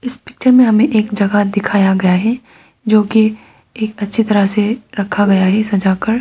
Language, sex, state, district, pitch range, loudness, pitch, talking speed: Hindi, female, Arunachal Pradesh, Papum Pare, 200-225 Hz, -13 LUFS, 210 Hz, 185 wpm